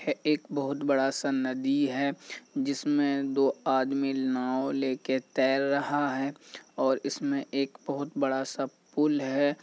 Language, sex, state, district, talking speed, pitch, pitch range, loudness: Hindi, male, Bihar, Kishanganj, 150 wpm, 140 Hz, 135-145 Hz, -29 LUFS